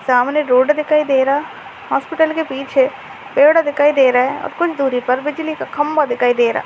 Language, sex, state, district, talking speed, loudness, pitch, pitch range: Hindi, female, Chhattisgarh, Raigarh, 225 wpm, -16 LUFS, 280 Hz, 260-300 Hz